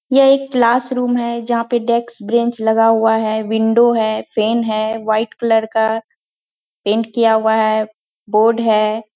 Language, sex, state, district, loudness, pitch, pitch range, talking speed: Hindi, female, Bihar, Purnia, -16 LUFS, 225 Hz, 220-235 Hz, 165 wpm